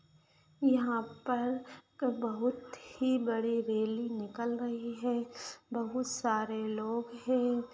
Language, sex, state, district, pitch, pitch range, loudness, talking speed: Hindi, female, Bihar, Saharsa, 235 Hz, 225-250 Hz, -34 LUFS, 110 wpm